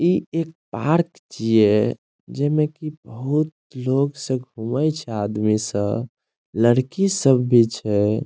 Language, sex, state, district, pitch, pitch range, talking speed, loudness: Maithili, male, Bihar, Saharsa, 130 Hz, 110-150 Hz, 115 wpm, -21 LUFS